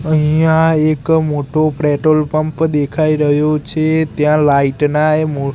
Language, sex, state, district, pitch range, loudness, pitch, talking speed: Gujarati, male, Gujarat, Gandhinagar, 150-155 Hz, -14 LUFS, 155 Hz, 140 wpm